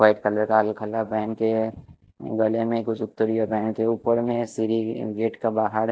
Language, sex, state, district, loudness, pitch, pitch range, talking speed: Hindi, male, Chhattisgarh, Raipur, -24 LUFS, 110 Hz, 110-115 Hz, 170 wpm